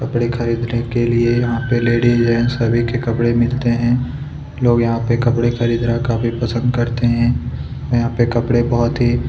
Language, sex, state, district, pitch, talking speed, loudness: Hindi, male, Chhattisgarh, Kabirdham, 120 Hz, 175 wpm, -17 LUFS